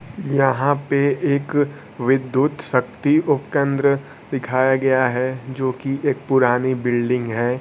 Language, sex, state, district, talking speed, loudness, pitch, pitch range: Hindi, male, Bihar, Kaimur, 125 wpm, -20 LUFS, 135 Hz, 130-140 Hz